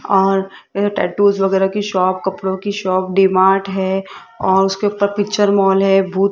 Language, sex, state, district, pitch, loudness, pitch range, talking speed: Hindi, female, Rajasthan, Jaipur, 195 Hz, -16 LUFS, 190-200 Hz, 190 wpm